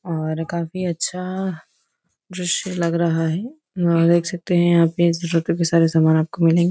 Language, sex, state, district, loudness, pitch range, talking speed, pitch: Hindi, female, Uttar Pradesh, Varanasi, -20 LUFS, 165-180 Hz, 170 wpm, 170 Hz